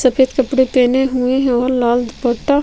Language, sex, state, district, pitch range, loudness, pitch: Hindi, female, Chhattisgarh, Sukma, 245-265 Hz, -15 LUFS, 255 Hz